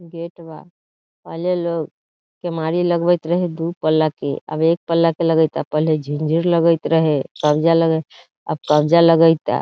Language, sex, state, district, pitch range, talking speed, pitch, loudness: Bhojpuri, female, Bihar, Saran, 155-170 Hz, 170 wpm, 165 Hz, -18 LUFS